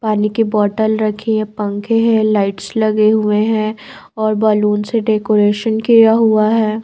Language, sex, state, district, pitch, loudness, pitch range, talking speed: Hindi, female, Bihar, Patna, 215 Hz, -14 LUFS, 210-220 Hz, 160 wpm